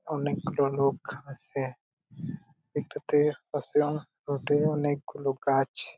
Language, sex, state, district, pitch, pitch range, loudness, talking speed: Bengali, male, West Bengal, Purulia, 145 Hz, 135-150 Hz, -29 LUFS, 90 wpm